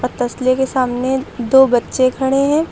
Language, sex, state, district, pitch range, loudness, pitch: Hindi, female, Uttar Pradesh, Lucknow, 250-265 Hz, -15 LUFS, 255 Hz